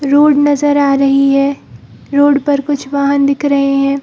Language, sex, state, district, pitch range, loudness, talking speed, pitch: Hindi, female, Chhattisgarh, Bilaspur, 275-290 Hz, -12 LUFS, 180 wpm, 280 Hz